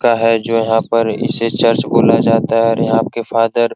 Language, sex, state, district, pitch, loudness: Hindi, male, Bihar, Araria, 115 Hz, -14 LUFS